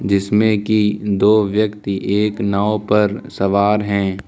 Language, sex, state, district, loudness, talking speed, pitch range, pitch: Hindi, male, Uttar Pradesh, Lucknow, -17 LUFS, 125 wpm, 100-105 Hz, 105 Hz